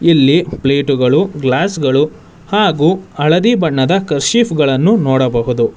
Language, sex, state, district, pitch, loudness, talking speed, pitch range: Kannada, male, Karnataka, Bangalore, 150 Hz, -13 LUFS, 105 wpm, 135-185 Hz